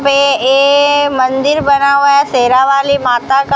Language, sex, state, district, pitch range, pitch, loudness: Hindi, female, Rajasthan, Bikaner, 265-280 Hz, 275 Hz, -10 LUFS